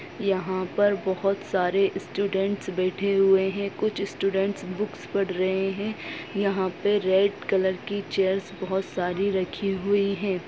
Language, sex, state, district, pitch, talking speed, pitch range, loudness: Hindi, male, Bihar, Gaya, 195 Hz, 145 wpm, 190-200 Hz, -26 LUFS